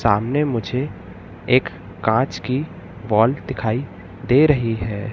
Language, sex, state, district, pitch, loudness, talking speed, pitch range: Hindi, male, Madhya Pradesh, Katni, 115 Hz, -20 LUFS, 115 wpm, 110-135 Hz